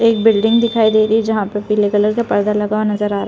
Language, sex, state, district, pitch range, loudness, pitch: Hindi, female, Chhattisgarh, Bilaspur, 210-225 Hz, -15 LUFS, 215 Hz